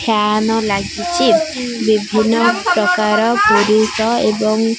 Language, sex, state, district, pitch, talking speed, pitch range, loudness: Odia, female, Odisha, Khordha, 220 Hz, 90 wpm, 215-230 Hz, -14 LUFS